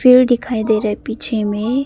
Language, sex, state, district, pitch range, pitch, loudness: Hindi, female, Arunachal Pradesh, Papum Pare, 215-250 Hz, 230 Hz, -16 LUFS